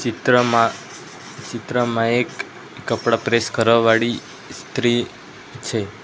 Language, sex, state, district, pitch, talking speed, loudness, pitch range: Gujarati, male, Gujarat, Valsad, 115 Hz, 90 wpm, -19 LUFS, 115-120 Hz